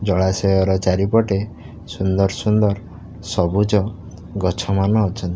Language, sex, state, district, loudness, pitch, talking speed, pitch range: Odia, male, Odisha, Khordha, -19 LUFS, 95 Hz, 100 wpm, 95-105 Hz